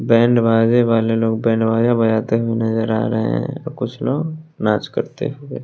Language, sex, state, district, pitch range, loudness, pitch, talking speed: Hindi, male, Bihar, West Champaran, 115-120 Hz, -18 LUFS, 115 Hz, 180 wpm